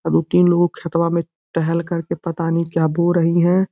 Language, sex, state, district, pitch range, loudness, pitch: Hindi, male, Uttar Pradesh, Gorakhpur, 165-175 Hz, -18 LUFS, 170 Hz